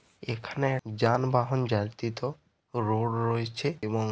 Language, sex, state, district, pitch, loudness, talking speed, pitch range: Bengali, male, West Bengal, Paschim Medinipur, 120 Hz, -29 LUFS, 100 wpm, 110-130 Hz